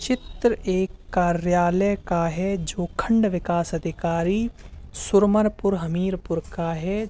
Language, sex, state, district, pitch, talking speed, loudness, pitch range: Hindi, male, Uttar Pradesh, Hamirpur, 185 Hz, 110 wpm, -23 LUFS, 170-200 Hz